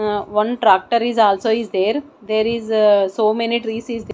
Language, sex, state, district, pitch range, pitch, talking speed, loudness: English, female, Odisha, Nuapada, 210-230 Hz, 220 Hz, 190 wpm, -17 LUFS